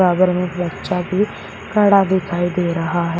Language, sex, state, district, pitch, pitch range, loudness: Hindi, male, Uttar Pradesh, Shamli, 180 Hz, 175-190 Hz, -18 LUFS